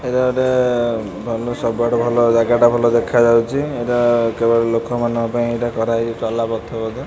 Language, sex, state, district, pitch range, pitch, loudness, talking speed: Odia, male, Odisha, Khordha, 115-120 Hz, 120 Hz, -17 LUFS, 145 wpm